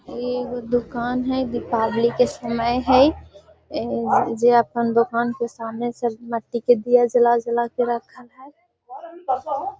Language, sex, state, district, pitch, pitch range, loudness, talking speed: Magahi, female, Bihar, Gaya, 240 Hz, 235-255 Hz, -21 LUFS, 140 wpm